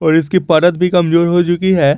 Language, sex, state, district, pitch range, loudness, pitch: Hindi, male, Jharkhand, Garhwa, 160-180 Hz, -12 LUFS, 175 Hz